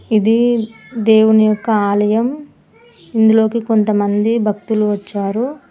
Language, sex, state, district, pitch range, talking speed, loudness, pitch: Telugu, female, Telangana, Mahabubabad, 210-230 Hz, 95 wpm, -15 LUFS, 220 Hz